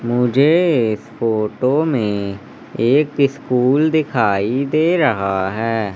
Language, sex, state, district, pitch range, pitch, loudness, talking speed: Hindi, male, Madhya Pradesh, Umaria, 110-150 Hz, 125 Hz, -17 LUFS, 100 wpm